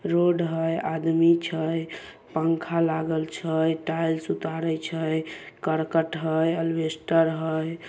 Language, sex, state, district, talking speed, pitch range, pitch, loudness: Maithili, male, Bihar, Samastipur, 115 wpm, 160-165 Hz, 160 Hz, -25 LUFS